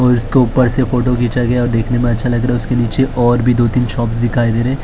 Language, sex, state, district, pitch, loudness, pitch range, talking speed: Hindi, male, Maharashtra, Mumbai Suburban, 120 Hz, -14 LUFS, 120-125 Hz, 325 wpm